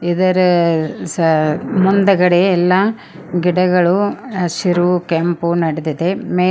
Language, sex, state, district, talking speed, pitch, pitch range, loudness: Kannada, female, Karnataka, Koppal, 75 wpm, 180 Hz, 170-185 Hz, -15 LUFS